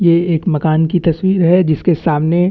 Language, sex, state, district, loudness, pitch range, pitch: Hindi, male, Chhattisgarh, Bastar, -14 LUFS, 160-180 Hz, 170 Hz